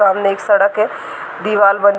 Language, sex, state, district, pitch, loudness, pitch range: Hindi, female, Bihar, Gaya, 200 Hz, -14 LUFS, 200-205 Hz